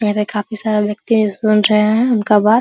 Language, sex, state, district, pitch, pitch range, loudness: Hindi, female, Bihar, Araria, 215 Hz, 210-220 Hz, -15 LUFS